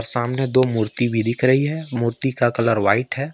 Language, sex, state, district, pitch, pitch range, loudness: Hindi, male, Jharkhand, Ranchi, 120 Hz, 115-135 Hz, -20 LUFS